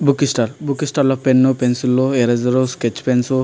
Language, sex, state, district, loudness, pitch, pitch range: Telugu, male, Andhra Pradesh, Anantapur, -17 LUFS, 130 Hz, 125-140 Hz